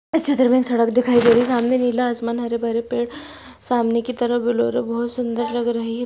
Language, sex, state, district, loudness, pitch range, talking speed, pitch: Hindi, female, Maharashtra, Nagpur, -19 LUFS, 235-245 Hz, 210 wpm, 240 Hz